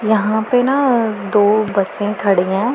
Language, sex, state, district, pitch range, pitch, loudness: Hindi, female, Punjab, Pathankot, 205-225 Hz, 215 Hz, -16 LUFS